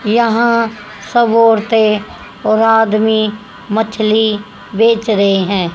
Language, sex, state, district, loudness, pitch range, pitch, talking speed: Hindi, female, Haryana, Charkhi Dadri, -13 LUFS, 210-225 Hz, 220 Hz, 95 wpm